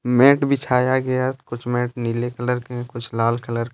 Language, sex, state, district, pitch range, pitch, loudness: Hindi, male, Jharkhand, Deoghar, 120-130 Hz, 125 Hz, -21 LUFS